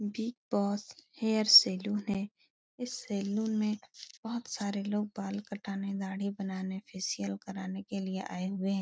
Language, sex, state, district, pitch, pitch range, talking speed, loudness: Hindi, female, Uttar Pradesh, Etah, 200 Hz, 195-215 Hz, 150 wpm, -32 LUFS